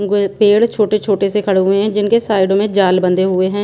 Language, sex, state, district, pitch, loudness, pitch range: Hindi, female, Punjab, Pathankot, 205 Hz, -14 LUFS, 190-210 Hz